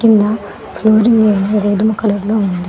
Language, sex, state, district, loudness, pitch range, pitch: Telugu, female, Telangana, Mahabubabad, -13 LUFS, 205-220 Hz, 215 Hz